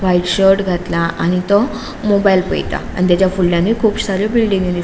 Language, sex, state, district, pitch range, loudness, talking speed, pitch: Konkani, female, Goa, North and South Goa, 180-205 Hz, -15 LUFS, 175 wpm, 190 Hz